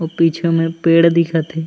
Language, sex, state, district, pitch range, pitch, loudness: Chhattisgarhi, male, Chhattisgarh, Raigarh, 165-170 Hz, 165 Hz, -15 LUFS